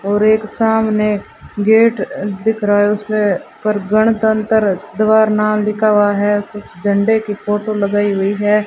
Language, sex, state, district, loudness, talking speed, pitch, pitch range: Hindi, female, Rajasthan, Bikaner, -15 LUFS, 160 wpm, 210 Hz, 205-215 Hz